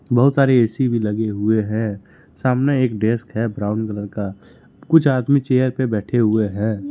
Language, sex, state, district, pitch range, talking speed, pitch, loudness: Hindi, male, Jharkhand, Ranchi, 105-130 Hz, 180 wpm, 110 Hz, -19 LUFS